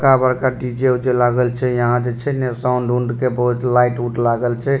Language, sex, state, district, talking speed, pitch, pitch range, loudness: Maithili, male, Bihar, Supaul, 210 wpm, 125 Hz, 120-130 Hz, -18 LUFS